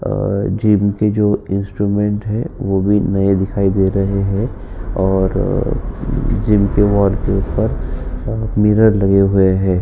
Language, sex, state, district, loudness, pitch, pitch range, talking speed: Hindi, male, Uttar Pradesh, Jyotiba Phule Nagar, -16 LUFS, 100 Hz, 95-105 Hz, 135 wpm